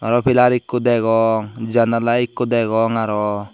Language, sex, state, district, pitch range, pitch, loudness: Chakma, male, Tripura, Dhalai, 110-120 Hz, 115 Hz, -17 LUFS